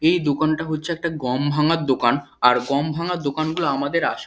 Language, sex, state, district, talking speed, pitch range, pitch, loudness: Bengali, male, West Bengal, Kolkata, 195 wpm, 140-160 Hz, 150 Hz, -21 LUFS